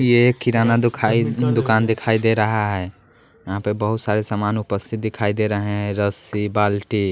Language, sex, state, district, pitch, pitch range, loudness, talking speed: Hindi, male, Bihar, West Champaran, 110 Hz, 105-115 Hz, -20 LUFS, 170 wpm